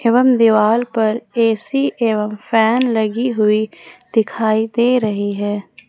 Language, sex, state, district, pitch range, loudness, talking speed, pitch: Hindi, female, Jharkhand, Ranchi, 215-235 Hz, -16 LUFS, 120 wpm, 225 Hz